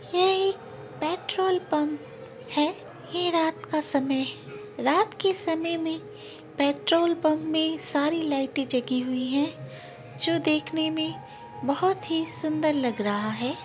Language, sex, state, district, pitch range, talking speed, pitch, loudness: Angika, female, Bihar, Araria, 285-345 Hz, 145 wpm, 315 Hz, -26 LUFS